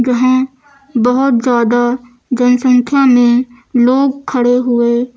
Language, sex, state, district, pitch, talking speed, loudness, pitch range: Hindi, female, Uttar Pradesh, Lucknow, 250 Hz, 95 wpm, -12 LUFS, 245-260 Hz